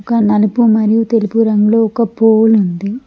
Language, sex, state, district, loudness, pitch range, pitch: Telugu, female, Telangana, Mahabubabad, -12 LUFS, 210-225 Hz, 220 Hz